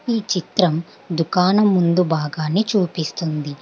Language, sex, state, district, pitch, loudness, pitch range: Telugu, female, Telangana, Hyderabad, 175 Hz, -19 LUFS, 160-190 Hz